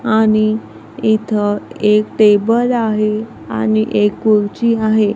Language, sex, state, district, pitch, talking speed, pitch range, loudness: Marathi, female, Maharashtra, Gondia, 215 Hz, 105 wpm, 205-220 Hz, -15 LUFS